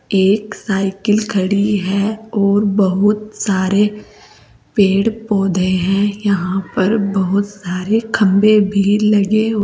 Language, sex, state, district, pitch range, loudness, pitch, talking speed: Hindi, female, Uttar Pradesh, Saharanpur, 195-210 Hz, -16 LUFS, 200 Hz, 105 wpm